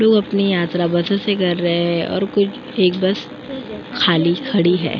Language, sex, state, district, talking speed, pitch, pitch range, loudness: Hindi, female, Uttar Pradesh, Jyotiba Phule Nagar, 180 wpm, 190 Hz, 175-205 Hz, -18 LUFS